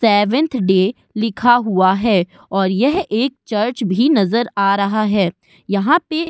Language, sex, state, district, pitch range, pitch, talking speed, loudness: Hindi, female, Uttar Pradesh, Budaun, 195-245 Hz, 215 Hz, 160 wpm, -16 LUFS